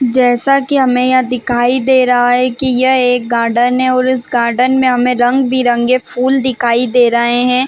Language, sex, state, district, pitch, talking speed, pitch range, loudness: Hindi, female, Chhattisgarh, Balrampur, 250 Hz, 190 wpm, 245-255 Hz, -12 LUFS